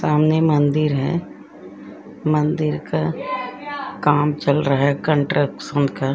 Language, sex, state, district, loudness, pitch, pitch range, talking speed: Hindi, female, Uttar Pradesh, Etah, -20 LUFS, 150 Hz, 145-160 Hz, 115 wpm